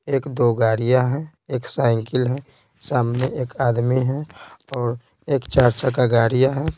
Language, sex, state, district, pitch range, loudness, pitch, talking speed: Hindi, male, Bihar, Patna, 120-135 Hz, -21 LUFS, 125 Hz, 150 wpm